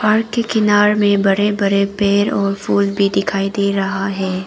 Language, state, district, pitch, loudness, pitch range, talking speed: Hindi, Arunachal Pradesh, Papum Pare, 200 Hz, -16 LUFS, 195-205 Hz, 175 wpm